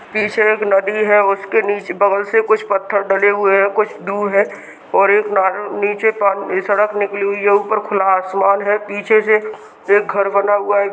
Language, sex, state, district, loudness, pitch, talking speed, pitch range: Hindi, male, Uttar Pradesh, Hamirpur, -15 LUFS, 205 Hz, 210 wpm, 195-210 Hz